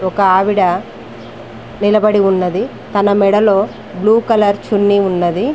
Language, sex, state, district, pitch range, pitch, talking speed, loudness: Telugu, female, Telangana, Mahabubabad, 180-205 Hz, 200 Hz, 110 wpm, -13 LUFS